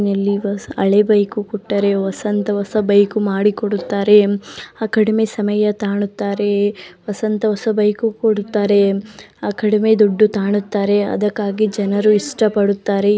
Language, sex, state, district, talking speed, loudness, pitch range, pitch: Kannada, female, Karnataka, Dharwad, 95 wpm, -17 LUFS, 200-215 Hz, 205 Hz